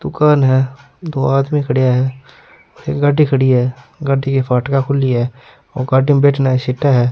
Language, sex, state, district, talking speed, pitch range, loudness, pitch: Rajasthani, male, Rajasthan, Nagaur, 185 wpm, 130-140 Hz, -15 LUFS, 135 Hz